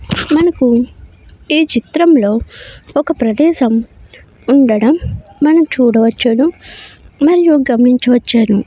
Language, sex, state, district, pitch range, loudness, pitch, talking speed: Telugu, female, Karnataka, Bellary, 235-310 Hz, -12 LUFS, 260 Hz, 70 wpm